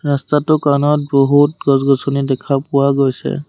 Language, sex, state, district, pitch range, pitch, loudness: Assamese, male, Assam, Sonitpur, 140-145 Hz, 140 Hz, -15 LUFS